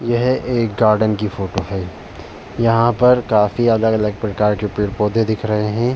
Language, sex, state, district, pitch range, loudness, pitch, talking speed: Hindi, male, Uttar Pradesh, Jalaun, 105-115 Hz, -17 LUFS, 110 Hz, 170 wpm